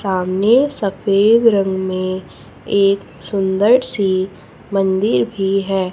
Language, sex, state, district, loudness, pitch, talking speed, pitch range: Hindi, female, Chhattisgarh, Raipur, -16 LUFS, 195 Hz, 100 wpm, 190-205 Hz